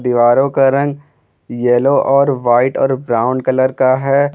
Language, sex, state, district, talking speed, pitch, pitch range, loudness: Hindi, male, Jharkhand, Garhwa, 150 wpm, 130 Hz, 125-140 Hz, -13 LUFS